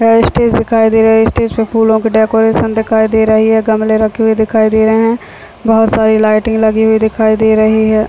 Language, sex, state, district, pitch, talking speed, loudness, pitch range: Hindi, female, Chhattisgarh, Bilaspur, 220 Hz, 230 wpm, -10 LUFS, 220-225 Hz